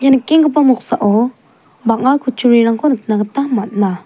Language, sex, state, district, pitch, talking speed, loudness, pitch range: Garo, female, Meghalaya, South Garo Hills, 245 Hz, 120 wpm, -14 LUFS, 220-270 Hz